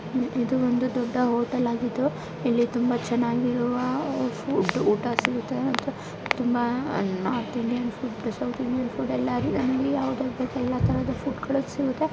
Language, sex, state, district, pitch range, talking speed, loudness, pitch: Kannada, female, Karnataka, Bijapur, 235-255 Hz, 115 wpm, -26 LUFS, 245 Hz